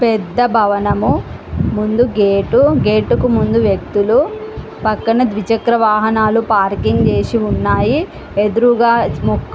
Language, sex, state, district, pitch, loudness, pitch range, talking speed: Telugu, female, Andhra Pradesh, Srikakulam, 220 Hz, -14 LUFS, 205-235 Hz, 105 wpm